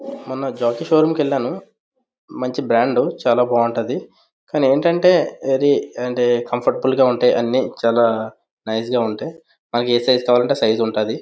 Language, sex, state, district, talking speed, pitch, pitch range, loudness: Telugu, male, Andhra Pradesh, Visakhapatnam, 140 wpm, 125 Hz, 120-135 Hz, -18 LUFS